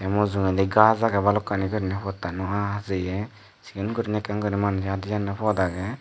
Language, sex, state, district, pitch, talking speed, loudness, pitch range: Chakma, male, Tripura, Dhalai, 100 Hz, 170 wpm, -24 LUFS, 95-105 Hz